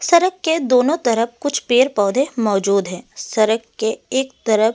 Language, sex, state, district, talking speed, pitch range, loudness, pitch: Hindi, female, Delhi, New Delhi, 165 wpm, 220-275 Hz, -18 LUFS, 240 Hz